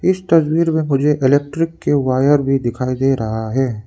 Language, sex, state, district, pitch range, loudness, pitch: Hindi, male, Arunachal Pradesh, Lower Dibang Valley, 130-160 Hz, -16 LUFS, 140 Hz